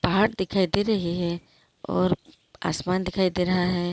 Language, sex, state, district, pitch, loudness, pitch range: Hindi, female, Uttarakhand, Uttarkashi, 180 Hz, -25 LUFS, 175-190 Hz